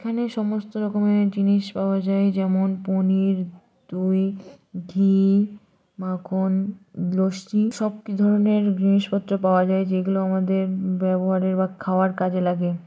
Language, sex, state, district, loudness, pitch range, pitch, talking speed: Bengali, female, West Bengal, Malda, -22 LUFS, 185-200 Hz, 190 Hz, 110 wpm